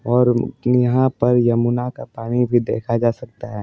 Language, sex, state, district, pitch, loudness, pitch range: Hindi, male, Bihar, Patna, 120 Hz, -18 LUFS, 120-125 Hz